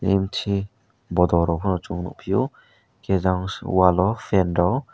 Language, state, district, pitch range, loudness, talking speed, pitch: Kokborok, Tripura, West Tripura, 90-110 Hz, -22 LUFS, 145 wpm, 95 Hz